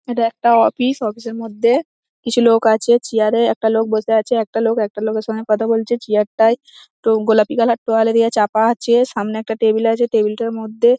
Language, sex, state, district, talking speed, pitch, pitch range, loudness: Bengali, female, West Bengal, Dakshin Dinajpur, 220 wpm, 225 Hz, 220-235 Hz, -16 LUFS